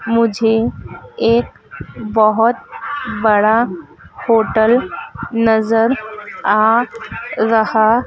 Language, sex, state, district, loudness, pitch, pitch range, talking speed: Hindi, female, Madhya Pradesh, Dhar, -15 LUFS, 225 Hz, 215-230 Hz, 60 wpm